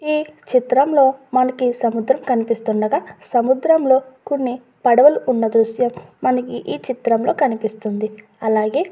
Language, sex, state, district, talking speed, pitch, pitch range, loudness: Telugu, female, Andhra Pradesh, Guntur, 110 wpm, 250 Hz, 225-270 Hz, -18 LUFS